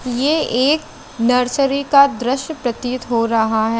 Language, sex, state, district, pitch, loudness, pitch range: Hindi, female, Chandigarh, Chandigarh, 250 Hz, -17 LUFS, 235-280 Hz